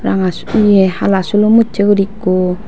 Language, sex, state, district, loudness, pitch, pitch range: Chakma, female, Tripura, Dhalai, -12 LUFS, 200 Hz, 185-210 Hz